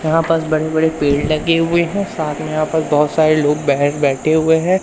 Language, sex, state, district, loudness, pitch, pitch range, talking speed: Hindi, male, Madhya Pradesh, Umaria, -16 LUFS, 155 Hz, 150-160 Hz, 235 wpm